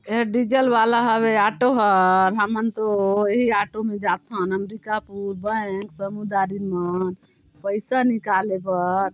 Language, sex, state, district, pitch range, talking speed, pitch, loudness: Chhattisgarhi, female, Chhattisgarh, Sarguja, 195-220 Hz, 125 wpm, 205 Hz, -21 LUFS